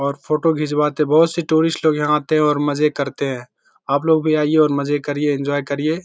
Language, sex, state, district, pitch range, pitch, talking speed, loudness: Hindi, male, Bihar, Purnia, 145-155 Hz, 150 Hz, 230 wpm, -18 LUFS